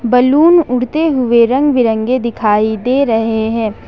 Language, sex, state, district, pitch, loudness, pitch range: Hindi, female, Jharkhand, Ranchi, 245 Hz, -12 LUFS, 225-265 Hz